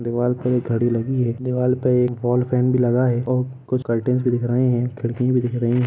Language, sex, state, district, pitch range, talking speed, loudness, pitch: Hindi, male, Jharkhand, Sahebganj, 120-125 Hz, 245 wpm, -20 LUFS, 125 Hz